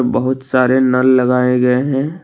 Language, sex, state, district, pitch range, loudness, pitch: Hindi, male, Assam, Kamrup Metropolitan, 125-130 Hz, -14 LUFS, 130 Hz